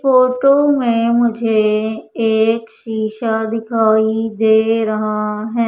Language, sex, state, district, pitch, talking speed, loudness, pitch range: Hindi, female, Madhya Pradesh, Umaria, 225 Hz, 95 wpm, -16 LUFS, 220-235 Hz